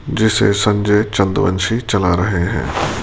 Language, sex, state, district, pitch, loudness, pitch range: Hindi, male, Rajasthan, Jaipur, 100 Hz, -16 LUFS, 95-110 Hz